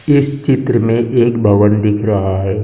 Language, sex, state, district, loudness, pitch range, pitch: Hindi, male, Maharashtra, Gondia, -13 LUFS, 105-125 Hz, 115 Hz